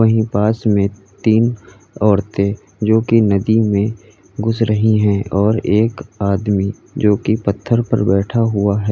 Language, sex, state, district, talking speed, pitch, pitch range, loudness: Hindi, male, Uttar Pradesh, Lalitpur, 150 wpm, 105 Hz, 100-110 Hz, -16 LUFS